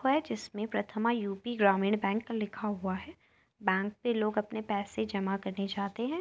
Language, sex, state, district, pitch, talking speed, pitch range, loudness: Hindi, female, Uttar Pradesh, Jyotiba Phule Nagar, 210 Hz, 175 wpm, 195-230 Hz, -32 LUFS